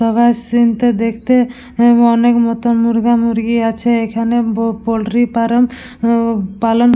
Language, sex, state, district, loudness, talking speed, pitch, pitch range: Bengali, female, West Bengal, Purulia, -14 LUFS, 140 wpm, 235 Hz, 230-240 Hz